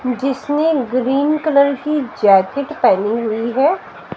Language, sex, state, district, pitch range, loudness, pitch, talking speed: Hindi, female, Haryana, Jhajjar, 240-295 Hz, -16 LUFS, 275 Hz, 115 wpm